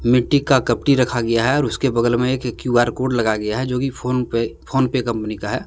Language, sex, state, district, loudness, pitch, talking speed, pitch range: Hindi, male, Jharkhand, Deoghar, -19 LUFS, 125 Hz, 265 wpm, 115-130 Hz